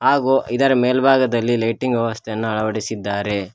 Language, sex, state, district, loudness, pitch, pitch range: Kannada, male, Karnataka, Koppal, -19 LUFS, 115 Hz, 110-130 Hz